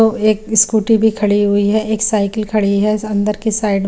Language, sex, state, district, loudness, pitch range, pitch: Hindi, female, Chandigarh, Chandigarh, -15 LUFS, 205-220 Hz, 215 Hz